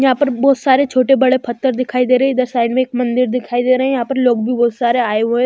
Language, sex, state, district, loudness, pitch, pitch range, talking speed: Hindi, female, Chhattisgarh, Raipur, -15 LUFS, 255 Hz, 245-260 Hz, 320 wpm